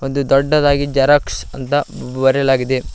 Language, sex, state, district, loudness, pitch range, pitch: Kannada, male, Karnataka, Koppal, -15 LUFS, 135-145 Hz, 135 Hz